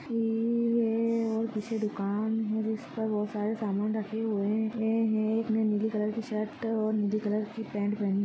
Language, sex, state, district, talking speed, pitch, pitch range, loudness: Hindi, female, Chhattisgarh, Balrampur, 190 wpm, 220 Hz, 210-225 Hz, -30 LUFS